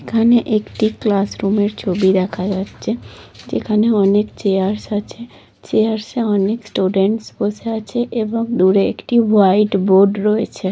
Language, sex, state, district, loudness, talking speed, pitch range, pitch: Bengali, female, West Bengal, Kolkata, -17 LUFS, 130 wpm, 195-225 Hz, 210 Hz